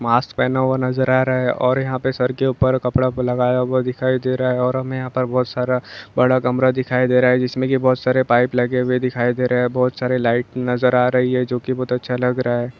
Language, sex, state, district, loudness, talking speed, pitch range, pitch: Hindi, male, Chhattisgarh, Balrampur, -18 LUFS, 265 wpm, 125-130 Hz, 125 Hz